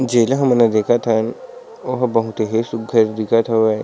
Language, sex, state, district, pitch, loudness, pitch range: Chhattisgarhi, male, Chhattisgarh, Sarguja, 115 Hz, -17 LUFS, 110-125 Hz